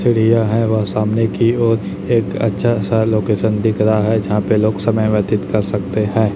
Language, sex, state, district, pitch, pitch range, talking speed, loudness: Hindi, male, Chhattisgarh, Raipur, 110 Hz, 105-115 Hz, 200 wpm, -16 LUFS